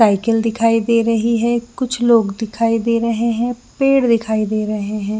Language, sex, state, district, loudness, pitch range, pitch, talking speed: Hindi, female, Jharkhand, Jamtara, -17 LUFS, 220-235 Hz, 230 Hz, 185 wpm